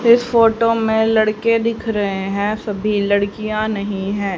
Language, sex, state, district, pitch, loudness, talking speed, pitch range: Hindi, female, Haryana, Jhajjar, 215 Hz, -17 LUFS, 150 wpm, 200-225 Hz